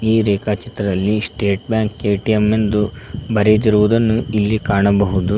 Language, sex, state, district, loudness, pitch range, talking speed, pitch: Kannada, male, Karnataka, Koppal, -17 LUFS, 100-110 Hz, 110 wpm, 105 Hz